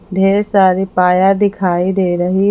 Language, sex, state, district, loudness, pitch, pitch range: Hindi, female, Jharkhand, Palamu, -13 LUFS, 190 Hz, 180-195 Hz